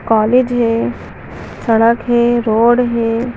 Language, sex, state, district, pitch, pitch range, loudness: Hindi, female, Bihar, Bhagalpur, 230 Hz, 215-240 Hz, -14 LUFS